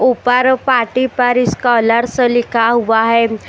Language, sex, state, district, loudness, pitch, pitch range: Hindi, female, Chhattisgarh, Raipur, -13 LUFS, 240 Hz, 230-250 Hz